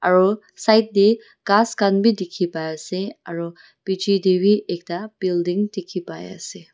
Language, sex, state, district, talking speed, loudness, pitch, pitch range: Nagamese, female, Nagaland, Dimapur, 140 wpm, -20 LUFS, 190 Hz, 175-210 Hz